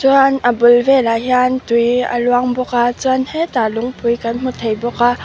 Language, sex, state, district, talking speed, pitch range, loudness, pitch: Mizo, female, Mizoram, Aizawl, 205 wpm, 235-255 Hz, -15 LUFS, 245 Hz